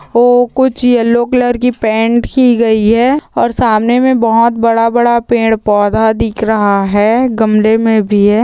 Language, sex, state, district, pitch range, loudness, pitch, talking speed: Hindi, female, Bihar, Purnia, 220-240 Hz, -11 LUFS, 230 Hz, 170 wpm